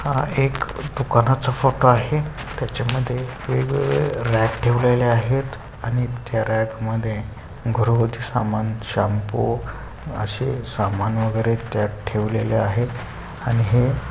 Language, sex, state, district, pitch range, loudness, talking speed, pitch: Marathi, male, Maharashtra, Pune, 110-125 Hz, -21 LUFS, 115 wpm, 115 Hz